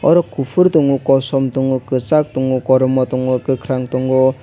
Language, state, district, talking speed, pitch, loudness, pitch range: Kokborok, Tripura, West Tripura, 150 wpm, 130 Hz, -15 LUFS, 130-135 Hz